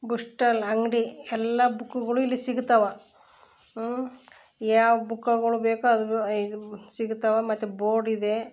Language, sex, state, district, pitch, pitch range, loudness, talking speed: Kannada, female, Karnataka, Bellary, 230 Hz, 220-240 Hz, -25 LUFS, 125 wpm